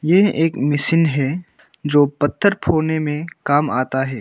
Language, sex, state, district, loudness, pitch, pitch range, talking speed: Hindi, male, Arunachal Pradesh, Longding, -18 LUFS, 150 Hz, 145-165 Hz, 155 wpm